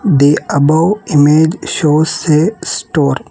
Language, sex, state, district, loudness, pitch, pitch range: English, female, Telangana, Hyderabad, -12 LUFS, 155 Hz, 150-165 Hz